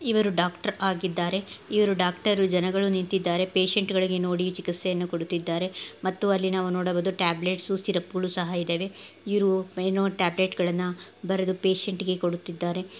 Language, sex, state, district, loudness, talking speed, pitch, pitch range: Kannada, female, Karnataka, Gulbarga, -26 LUFS, 135 wpm, 185 Hz, 180-195 Hz